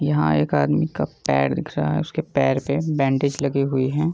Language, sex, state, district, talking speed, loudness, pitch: Hindi, male, Bihar, Begusarai, 215 wpm, -21 LUFS, 135 Hz